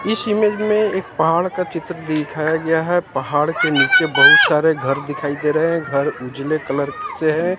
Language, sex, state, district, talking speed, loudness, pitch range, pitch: Hindi, male, Haryana, Jhajjar, 195 wpm, -17 LUFS, 150-185 Hz, 160 Hz